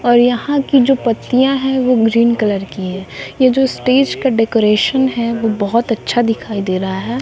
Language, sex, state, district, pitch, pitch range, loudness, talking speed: Hindi, female, Bihar, West Champaran, 235 Hz, 215-260 Hz, -14 LUFS, 200 wpm